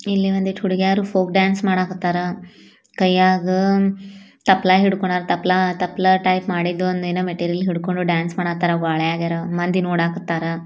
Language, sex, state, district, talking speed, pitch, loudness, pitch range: Kannada, female, Karnataka, Bijapur, 110 wpm, 185 Hz, -19 LUFS, 175-190 Hz